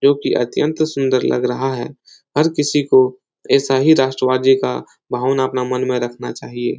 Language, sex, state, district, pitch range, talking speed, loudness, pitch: Hindi, male, Uttar Pradesh, Etah, 125-140 Hz, 170 wpm, -17 LUFS, 130 Hz